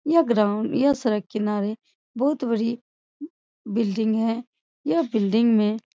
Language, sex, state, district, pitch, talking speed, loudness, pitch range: Hindi, female, Bihar, Supaul, 230 Hz, 130 wpm, -23 LUFS, 215-275 Hz